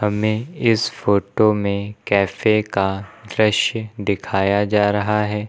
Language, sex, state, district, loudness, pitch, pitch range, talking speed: Hindi, male, Uttar Pradesh, Lucknow, -19 LUFS, 105 Hz, 100-110 Hz, 120 wpm